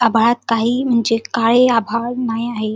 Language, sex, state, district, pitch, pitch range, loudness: Marathi, female, Maharashtra, Sindhudurg, 230 Hz, 225-240 Hz, -16 LUFS